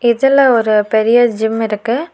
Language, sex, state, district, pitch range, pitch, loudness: Tamil, female, Tamil Nadu, Nilgiris, 220-245 Hz, 235 Hz, -13 LUFS